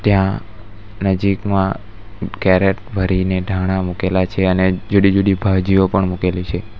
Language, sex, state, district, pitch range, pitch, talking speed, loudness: Gujarati, male, Gujarat, Valsad, 95-100 Hz, 95 Hz, 115 wpm, -17 LUFS